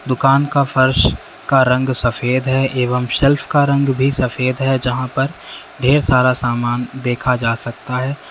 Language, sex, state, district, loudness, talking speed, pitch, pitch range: Hindi, male, Uttar Pradesh, Lalitpur, -16 LUFS, 165 wpm, 130 Hz, 125-135 Hz